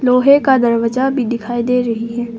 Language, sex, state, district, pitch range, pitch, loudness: Hindi, female, Arunachal Pradesh, Longding, 235-260 Hz, 240 Hz, -15 LUFS